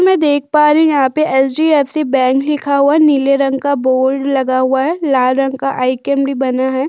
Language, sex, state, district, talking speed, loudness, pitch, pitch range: Hindi, female, Uttar Pradesh, Budaun, 225 wpm, -13 LUFS, 275 Hz, 265-295 Hz